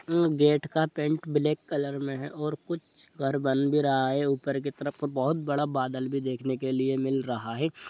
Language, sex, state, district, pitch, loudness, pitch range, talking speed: Hindi, male, Bihar, Jahanabad, 140 Hz, -28 LUFS, 135-150 Hz, 215 wpm